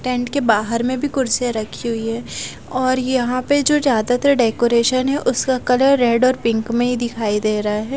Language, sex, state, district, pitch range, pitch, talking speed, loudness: Hindi, female, Punjab, Fazilka, 230-260 Hz, 245 Hz, 205 wpm, -18 LUFS